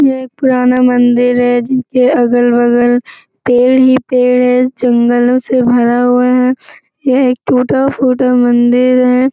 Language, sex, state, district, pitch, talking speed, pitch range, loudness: Hindi, female, Bihar, Jamui, 250 Hz, 135 wpm, 245-255 Hz, -10 LUFS